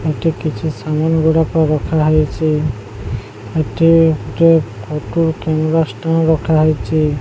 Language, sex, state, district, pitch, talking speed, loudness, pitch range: Odia, male, Odisha, Sambalpur, 155 Hz, 110 wpm, -15 LUFS, 150-160 Hz